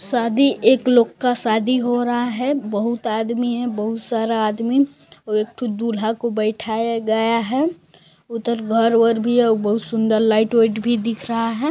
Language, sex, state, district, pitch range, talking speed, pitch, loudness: Hindi, female, Chhattisgarh, Balrampur, 220-240 Hz, 180 wpm, 230 Hz, -19 LUFS